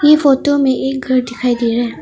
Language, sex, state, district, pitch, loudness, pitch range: Hindi, female, Arunachal Pradesh, Longding, 260 Hz, -14 LUFS, 240-280 Hz